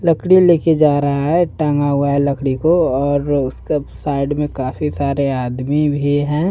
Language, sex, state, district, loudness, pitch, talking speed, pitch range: Hindi, male, Jharkhand, Deoghar, -16 LUFS, 145 Hz, 175 wpm, 140-150 Hz